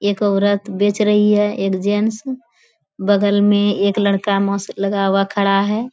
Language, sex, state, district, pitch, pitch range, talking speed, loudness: Hindi, female, Bihar, Bhagalpur, 205 Hz, 200-210 Hz, 160 wpm, -17 LUFS